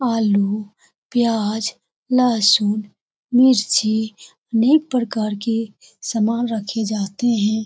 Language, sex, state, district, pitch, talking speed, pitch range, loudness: Hindi, female, Bihar, Saran, 220 Hz, 85 wpm, 210-240 Hz, -19 LUFS